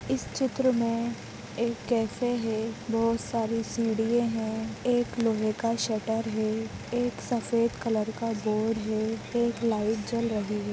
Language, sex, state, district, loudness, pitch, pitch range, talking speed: Hindi, female, Chhattisgarh, Raigarh, -29 LUFS, 225 Hz, 220-235 Hz, 145 wpm